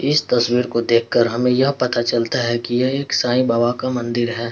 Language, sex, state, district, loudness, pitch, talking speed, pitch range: Hindi, male, Bihar, Patna, -18 LUFS, 120 Hz, 240 wpm, 120-125 Hz